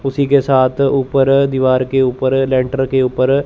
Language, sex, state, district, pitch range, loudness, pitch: Hindi, male, Chandigarh, Chandigarh, 130-135 Hz, -14 LUFS, 135 Hz